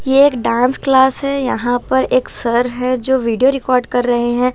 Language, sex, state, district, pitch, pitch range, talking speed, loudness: Hindi, female, Bihar, Patna, 255 Hz, 245-265 Hz, 225 wpm, -15 LUFS